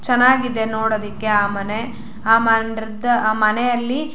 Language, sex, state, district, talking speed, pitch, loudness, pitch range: Kannada, female, Karnataka, Shimoga, 130 wpm, 225 Hz, -18 LUFS, 215-245 Hz